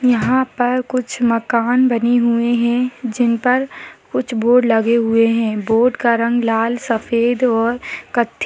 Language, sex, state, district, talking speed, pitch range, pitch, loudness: Hindi, female, Uttarakhand, Tehri Garhwal, 155 wpm, 230-250 Hz, 240 Hz, -16 LUFS